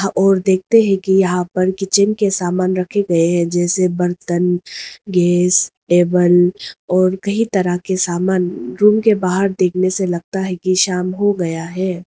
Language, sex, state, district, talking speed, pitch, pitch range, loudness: Hindi, female, Arunachal Pradesh, Lower Dibang Valley, 165 wpm, 185 Hz, 180-195 Hz, -16 LUFS